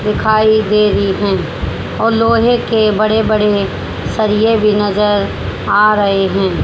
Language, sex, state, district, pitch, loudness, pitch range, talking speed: Hindi, female, Haryana, Charkhi Dadri, 210 Hz, -13 LUFS, 205-220 Hz, 135 wpm